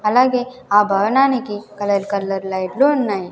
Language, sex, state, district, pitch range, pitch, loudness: Telugu, female, Andhra Pradesh, Sri Satya Sai, 195-250 Hz, 205 Hz, -18 LUFS